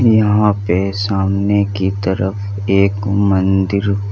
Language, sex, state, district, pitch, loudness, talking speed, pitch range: Hindi, male, Uttar Pradesh, Lalitpur, 100 Hz, -16 LUFS, 100 wpm, 95-100 Hz